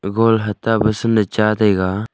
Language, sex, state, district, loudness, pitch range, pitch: Wancho, male, Arunachal Pradesh, Longding, -17 LUFS, 105-110 Hz, 110 Hz